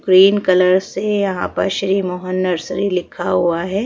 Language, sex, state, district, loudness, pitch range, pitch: Hindi, female, Madhya Pradesh, Bhopal, -17 LUFS, 180-195 Hz, 185 Hz